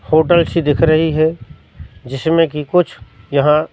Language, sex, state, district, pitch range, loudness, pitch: Hindi, male, Madhya Pradesh, Katni, 140-165 Hz, -15 LUFS, 155 Hz